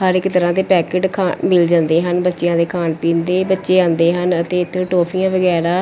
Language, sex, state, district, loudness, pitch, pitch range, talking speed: Punjabi, female, Punjab, Pathankot, -16 LUFS, 180 Hz, 170-185 Hz, 225 wpm